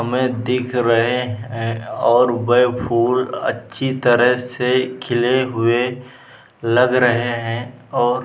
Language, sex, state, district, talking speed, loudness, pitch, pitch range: Hindi, male, Bihar, Vaishali, 125 wpm, -18 LUFS, 125 Hz, 120-125 Hz